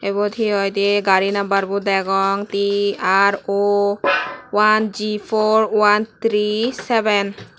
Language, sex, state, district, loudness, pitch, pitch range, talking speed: Chakma, female, Tripura, West Tripura, -18 LUFS, 205 Hz, 200-215 Hz, 120 wpm